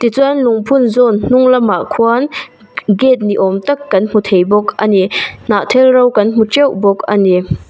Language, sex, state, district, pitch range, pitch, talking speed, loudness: Mizo, female, Mizoram, Aizawl, 200-255 Hz, 220 Hz, 185 wpm, -11 LUFS